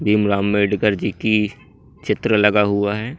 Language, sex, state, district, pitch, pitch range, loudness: Hindi, male, Madhya Pradesh, Katni, 105 Hz, 100-105 Hz, -18 LUFS